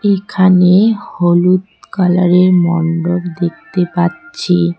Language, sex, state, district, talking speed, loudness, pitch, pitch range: Bengali, female, West Bengal, Cooch Behar, 75 wpm, -13 LUFS, 180 Hz, 175-190 Hz